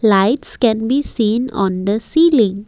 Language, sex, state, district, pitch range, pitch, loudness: English, female, Assam, Kamrup Metropolitan, 200-255 Hz, 225 Hz, -16 LUFS